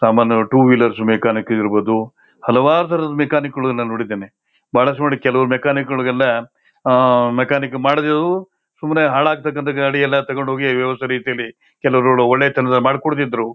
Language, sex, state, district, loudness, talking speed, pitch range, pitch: Kannada, male, Karnataka, Shimoga, -16 LUFS, 110 wpm, 120-140 Hz, 130 Hz